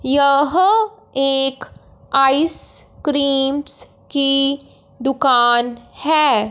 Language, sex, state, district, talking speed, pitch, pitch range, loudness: Hindi, female, Punjab, Fazilka, 55 wpm, 275 Hz, 270-295 Hz, -15 LUFS